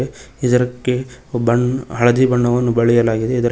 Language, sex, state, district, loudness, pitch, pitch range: Kannada, male, Karnataka, Koppal, -17 LUFS, 120 Hz, 120-125 Hz